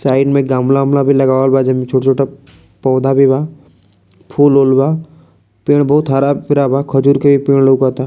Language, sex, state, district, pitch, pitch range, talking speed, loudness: Bhojpuri, male, Bihar, East Champaran, 135 Hz, 130-140 Hz, 180 wpm, -12 LUFS